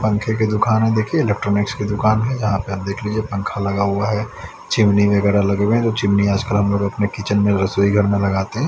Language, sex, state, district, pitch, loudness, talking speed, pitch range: Hindi, male, Haryana, Rohtak, 105 Hz, -18 LUFS, 250 wpm, 100-110 Hz